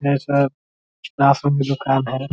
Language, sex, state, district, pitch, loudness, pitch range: Hindi, male, Bihar, Vaishali, 140 Hz, -19 LUFS, 130-140 Hz